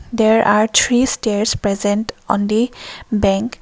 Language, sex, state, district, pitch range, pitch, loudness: English, female, Assam, Kamrup Metropolitan, 205-230 Hz, 215 Hz, -16 LUFS